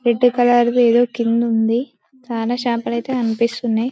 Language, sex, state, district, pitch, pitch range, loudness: Telugu, female, Telangana, Karimnagar, 240 Hz, 235-245 Hz, -17 LUFS